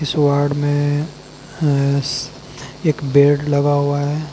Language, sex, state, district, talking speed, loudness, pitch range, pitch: Hindi, male, Uttar Pradesh, Lalitpur, 110 wpm, -17 LUFS, 140-145 Hz, 145 Hz